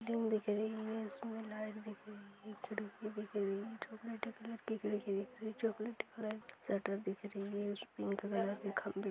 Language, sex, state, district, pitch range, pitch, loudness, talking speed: Hindi, male, Bihar, Madhepura, 205-220 Hz, 215 Hz, -42 LUFS, 210 wpm